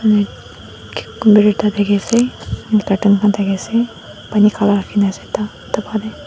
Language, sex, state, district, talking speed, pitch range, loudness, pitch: Nagamese, female, Nagaland, Dimapur, 155 wpm, 205-215 Hz, -16 LUFS, 210 Hz